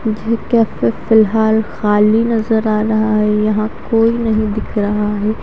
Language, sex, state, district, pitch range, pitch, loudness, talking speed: Hindi, female, Haryana, Charkhi Dadri, 210-225 Hz, 215 Hz, -15 LUFS, 165 wpm